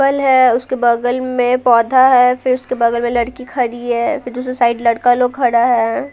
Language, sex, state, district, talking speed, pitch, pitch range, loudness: Hindi, female, Bihar, Patna, 195 wpm, 250 Hz, 240-255 Hz, -14 LUFS